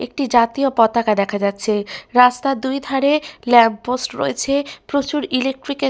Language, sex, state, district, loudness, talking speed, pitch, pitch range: Bengali, female, West Bengal, Malda, -18 LUFS, 150 wpm, 255 Hz, 230-275 Hz